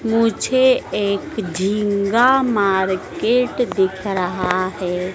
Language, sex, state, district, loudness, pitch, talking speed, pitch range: Hindi, female, Madhya Pradesh, Dhar, -18 LUFS, 200 Hz, 80 wpm, 190-235 Hz